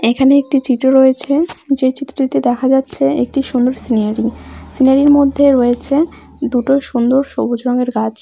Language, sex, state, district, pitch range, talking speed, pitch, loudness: Bengali, female, West Bengal, Malda, 245-275 Hz, 145 wpm, 265 Hz, -14 LUFS